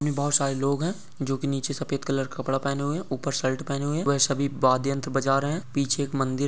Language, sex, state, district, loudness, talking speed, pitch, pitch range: Hindi, male, Maharashtra, Aurangabad, -26 LUFS, 270 wpm, 140 Hz, 135-145 Hz